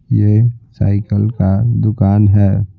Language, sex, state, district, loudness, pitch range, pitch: Hindi, male, Bihar, Patna, -14 LUFS, 100-115 Hz, 105 Hz